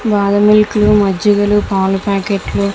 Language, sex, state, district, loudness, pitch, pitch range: Telugu, female, Andhra Pradesh, Visakhapatnam, -13 LUFS, 205 Hz, 200-210 Hz